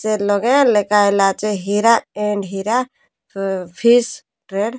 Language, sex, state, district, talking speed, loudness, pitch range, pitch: Odia, female, Odisha, Malkangiri, 140 wpm, -17 LUFS, 195-230 Hz, 210 Hz